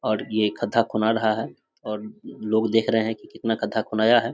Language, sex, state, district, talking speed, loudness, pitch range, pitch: Hindi, male, Bihar, Samastipur, 220 wpm, -24 LUFS, 110-115 Hz, 110 Hz